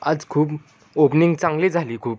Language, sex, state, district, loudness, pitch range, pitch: Marathi, male, Maharashtra, Pune, -20 LUFS, 135-165 Hz, 150 Hz